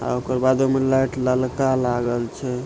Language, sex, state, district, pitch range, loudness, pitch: Maithili, male, Bihar, Supaul, 125-130 Hz, -21 LUFS, 130 Hz